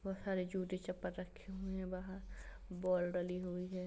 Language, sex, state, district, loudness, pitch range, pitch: Hindi, female, Uttar Pradesh, Hamirpur, -42 LUFS, 180-190 Hz, 185 Hz